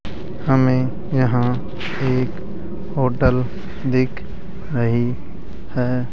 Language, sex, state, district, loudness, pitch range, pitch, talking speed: Hindi, male, Rajasthan, Jaipur, -21 LUFS, 125-175 Hz, 130 Hz, 70 wpm